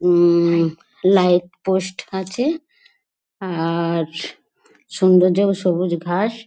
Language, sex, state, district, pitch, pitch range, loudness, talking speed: Bengali, female, West Bengal, Dakshin Dinajpur, 185 Hz, 170-195 Hz, -18 LUFS, 75 wpm